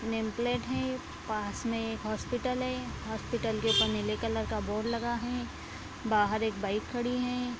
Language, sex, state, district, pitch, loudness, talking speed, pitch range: Hindi, female, Bihar, Araria, 225 Hz, -32 LUFS, 175 wpm, 215-245 Hz